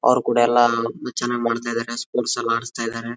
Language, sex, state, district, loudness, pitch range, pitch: Kannada, male, Karnataka, Bellary, -21 LUFS, 115-120 Hz, 120 Hz